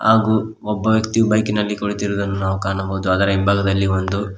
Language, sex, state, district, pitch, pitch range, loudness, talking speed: Kannada, male, Karnataka, Koppal, 100 Hz, 95-110 Hz, -19 LUFS, 125 wpm